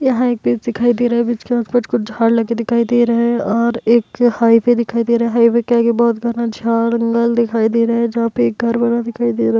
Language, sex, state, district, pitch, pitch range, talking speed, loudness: Hindi, female, Bihar, Madhepura, 235 Hz, 230-235 Hz, 265 wpm, -15 LUFS